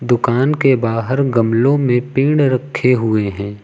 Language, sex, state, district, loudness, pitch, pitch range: Hindi, male, Uttar Pradesh, Lucknow, -15 LUFS, 125 Hz, 115-135 Hz